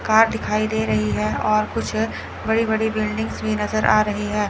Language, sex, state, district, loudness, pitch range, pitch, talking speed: Hindi, female, Chandigarh, Chandigarh, -21 LUFS, 210-220 Hz, 215 Hz, 185 wpm